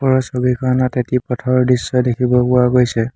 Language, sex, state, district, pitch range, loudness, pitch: Assamese, male, Assam, Hailakandi, 125-130 Hz, -16 LUFS, 125 Hz